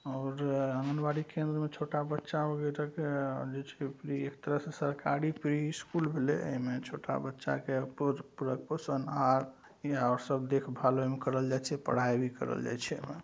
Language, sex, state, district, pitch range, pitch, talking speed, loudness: Maithili, male, Bihar, Saharsa, 130-150 Hz, 140 Hz, 150 wpm, -34 LUFS